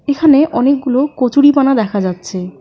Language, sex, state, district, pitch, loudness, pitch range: Bengali, female, West Bengal, Alipurduar, 265 Hz, -12 LUFS, 200-285 Hz